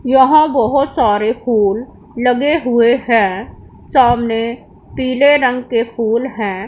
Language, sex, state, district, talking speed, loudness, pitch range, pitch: Hindi, female, Punjab, Pathankot, 115 wpm, -14 LUFS, 225-265 Hz, 240 Hz